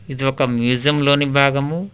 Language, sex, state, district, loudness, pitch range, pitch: Telugu, male, Telangana, Hyderabad, -17 LUFS, 135-145 Hz, 140 Hz